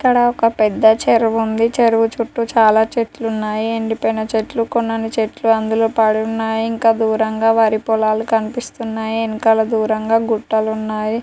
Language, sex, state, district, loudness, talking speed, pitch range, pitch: Telugu, female, Andhra Pradesh, Guntur, -16 LUFS, 145 wpm, 220-230 Hz, 225 Hz